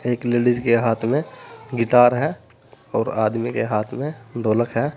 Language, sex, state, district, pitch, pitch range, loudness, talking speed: Hindi, male, Uttar Pradesh, Saharanpur, 120 Hz, 115-125 Hz, -20 LUFS, 170 wpm